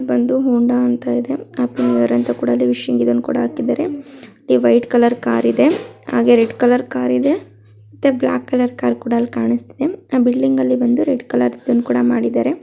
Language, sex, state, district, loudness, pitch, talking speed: Kannada, female, Karnataka, Chamarajanagar, -16 LUFS, 130 Hz, 180 wpm